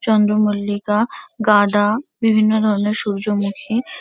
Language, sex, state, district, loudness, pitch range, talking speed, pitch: Bengali, female, West Bengal, Kolkata, -18 LUFS, 205-220 Hz, 90 wpm, 210 Hz